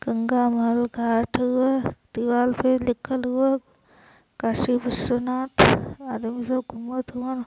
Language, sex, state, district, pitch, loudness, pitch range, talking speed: Hindi, female, Uttar Pradesh, Varanasi, 250 Hz, -23 LUFS, 240-255 Hz, 110 wpm